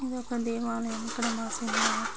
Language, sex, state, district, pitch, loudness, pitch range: Telugu, female, Andhra Pradesh, Srikakulam, 235 Hz, -30 LUFS, 230-240 Hz